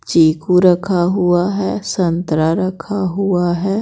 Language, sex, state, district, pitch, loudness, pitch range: Hindi, female, Bihar, Patna, 180 Hz, -16 LUFS, 170-190 Hz